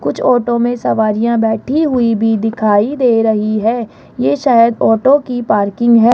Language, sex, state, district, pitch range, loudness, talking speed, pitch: Hindi, female, Rajasthan, Jaipur, 220-245 Hz, -13 LUFS, 165 wpm, 230 Hz